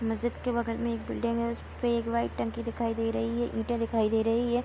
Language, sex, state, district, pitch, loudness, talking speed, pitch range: Hindi, female, Uttar Pradesh, Jalaun, 230 Hz, -30 LUFS, 270 wpm, 225-235 Hz